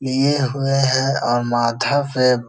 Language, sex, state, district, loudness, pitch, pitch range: Hindi, male, Bihar, Jahanabad, -18 LUFS, 130 Hz, 120-135 Hz